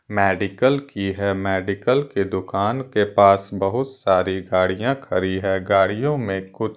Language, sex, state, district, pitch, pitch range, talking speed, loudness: Hindi, male, Delhi, New Delhi, 100 Hz, 95-110 Hz, 140 wpm, -20 LUFS